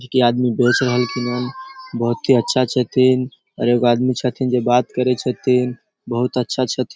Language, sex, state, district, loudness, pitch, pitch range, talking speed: Maithili, male, Bihar, Samastipur, -18 LUFS, 125 Hz, 120-130 Hz, 170 wpm